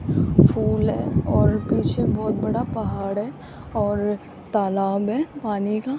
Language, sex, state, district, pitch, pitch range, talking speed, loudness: Hindi, female, Rajasthan, Jaipur, 210 Hz, 200-220 Hz, 150 wpm, -22 LUFS